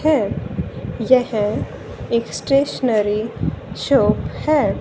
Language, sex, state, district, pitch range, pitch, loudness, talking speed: Hindi, female, Haryana, Rohtak, 215-280 Hz, 245 Hz, -19 LUFS, 75 wpm